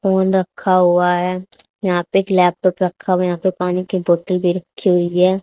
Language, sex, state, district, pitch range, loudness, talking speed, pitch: Hindi, female, Haryana, Charkhi Dadri, 180-185 Hz, -17 LUFS, 220 wpm, 180 Hz